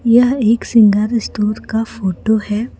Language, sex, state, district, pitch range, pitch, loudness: Hindi, female, Jharkhand, Palamu, 210-230 Hz, 220 Hz, -15 LUFS